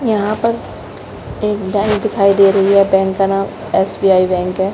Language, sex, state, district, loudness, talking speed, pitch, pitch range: Hindi, female, Uttar Pradesh, Budaun, -14 LUFS, 175 wpm, 195 Hz, 195-210 Hz